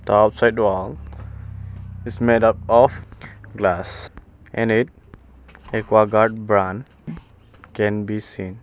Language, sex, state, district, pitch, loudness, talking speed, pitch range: English, male, Arunachal Pradesh, Papum Pare, 105 Hz, -19 LUFS, 110 wpm, 95-110 Hz